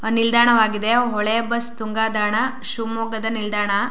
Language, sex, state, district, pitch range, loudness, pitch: Kannada, female, Karnataka, Shimoga, 215-235 Hz, -19 LUFS, 225 Hz